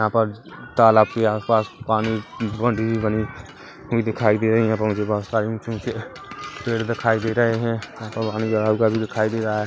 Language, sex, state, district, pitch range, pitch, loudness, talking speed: Hindi, male, Chhattisgarh, Kabirdham, 110-115 Hz, 110 Hz, -21 LUFS, 215 wpm